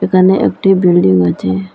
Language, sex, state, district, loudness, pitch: Bengali, female, Assam, Hailakandi, -11 LUFS, 175 Hz